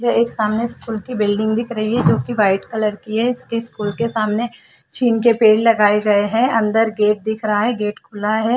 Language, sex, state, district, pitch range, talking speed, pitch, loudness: Hindi, female, Chhattisgarh, Rajnandgaon, 210-235 Hz, 225 wpm, 220 Hz, -18 LUFS